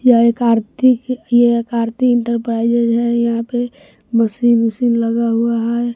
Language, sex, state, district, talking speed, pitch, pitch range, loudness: Hindi, male, Bihar, West Champaran, 160 wpm, 235 Hz, 230-240 Hz, -15 LUFS